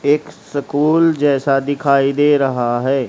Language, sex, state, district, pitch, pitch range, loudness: Hindi, male, Haryana, Rohtak, 145 Hz, 135-145 Hz, -16 LUFS